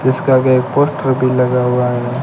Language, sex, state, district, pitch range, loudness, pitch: Hindi, male, Rajasthan, Bikaner, 125-130 Hz, -14 LUFS, 130 Hz